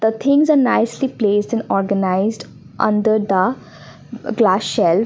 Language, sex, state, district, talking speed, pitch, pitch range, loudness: English, female, Assam, Kamrup Metropolitan, 130 wpm, 220 Hz, 200-245 Hz, -17 LUFS